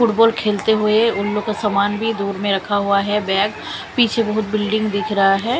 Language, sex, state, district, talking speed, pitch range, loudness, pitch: Hindi, female, Chandigarh, Chandigarh, 205 wpm, 200-220 Hz, -18 LUFS, 210 Hz